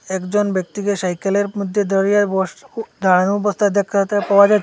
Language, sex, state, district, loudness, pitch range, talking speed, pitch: Bengali, male, Assam, Hailakandi, -18 LUFS, 190-205 Hz, 155 wpm, 200 Hz